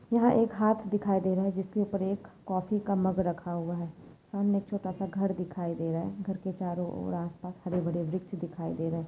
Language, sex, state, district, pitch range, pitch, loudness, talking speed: Hindi, female, Maharashtra, Dhule, 175-200 Hz, 185 Hz, -31 LUFS, 240 wpm